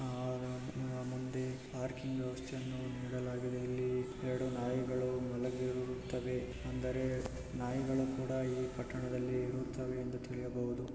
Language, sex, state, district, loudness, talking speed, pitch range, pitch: Kannada, male, Karnataka, Dakshina Kannada, -39 LUFS, 90 wpm, 125-130 Hz, 125 Hz